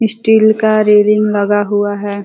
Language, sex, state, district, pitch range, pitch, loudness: Hindi, female, Uttar Pradesh, Ghazipur, 205-215 Hz, 210 Hz, -12 LUFS